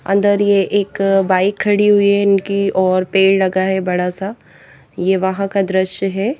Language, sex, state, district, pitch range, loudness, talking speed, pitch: Hindi, female, Haryana, Jhajjar, 190-200 Hz, -15 LUFS, 180 wpm, 195 Hz